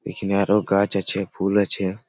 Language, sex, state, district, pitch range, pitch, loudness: Bengali, male, West Bengal, Malda, 95-100 Hz, 100 Hz, -20 LUFS